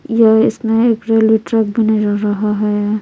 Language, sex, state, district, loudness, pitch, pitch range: Hindi, female, Bihar, Patna, -14 LUFS, 220 Hz, 210-225 Hz